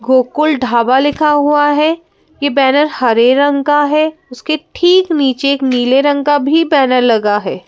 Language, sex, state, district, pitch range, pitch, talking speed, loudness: Hindi, female, Madhya Pradesh, Bhopal, 255-305 Hz, 285 Hz, 170 wpm, -12 LUFS